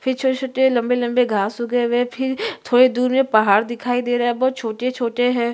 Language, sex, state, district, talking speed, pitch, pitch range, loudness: Hindi, female, Chhattisgarh, Sukma, 195 wpm, 245 Hz, 235-255 Hz, -19 LUFS